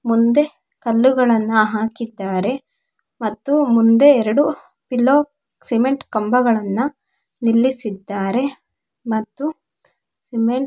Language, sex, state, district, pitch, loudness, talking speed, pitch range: Kannada, female, Karnataka, Chamarajanagar, 235 Hz, -18 LUFS, 60 wpm, 220-275 Hz